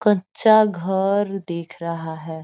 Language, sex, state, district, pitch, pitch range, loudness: Hindi, female, Bihar, Gopalganj, 190 Hz, 170-205 Hz, -21 LUFS